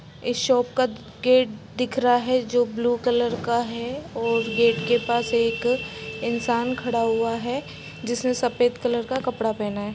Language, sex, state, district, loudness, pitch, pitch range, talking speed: Hindi, female, Jharkhand, Jamtara, -23 LUFS, 240 Hz, 230-250 Hz, 170 wpm